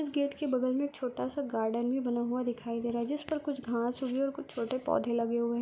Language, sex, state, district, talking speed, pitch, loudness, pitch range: Hindi, female, Rajasthan, Churu, 290 wpm, 255 Hz, -33 LUFS, 235-280 Hz